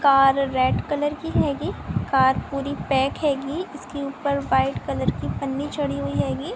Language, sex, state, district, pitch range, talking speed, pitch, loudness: Hindi, female, Chhattisgarh, Korba, 265-285 Hz, 165 wpm, 275 Hz, -23 LUFS